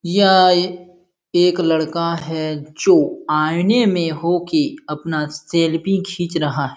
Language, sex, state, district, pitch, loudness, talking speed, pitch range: Hindi, male, Uttar Pradesh, Jalaun, 175 Hz, -18 LUFS, 125 wpm, 160-185 Hz